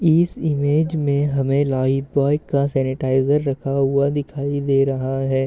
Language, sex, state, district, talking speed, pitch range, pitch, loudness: Hindi, male, Uttar Pradesh, Deoria, 140 wpm, 135-145 Hz, 140 Hz, -20 LUFS